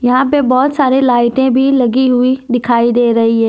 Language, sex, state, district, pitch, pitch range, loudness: Hindi, female, Jharkhand, Deoghar, 255 Hz, 240-265 Hz, -12 LUFS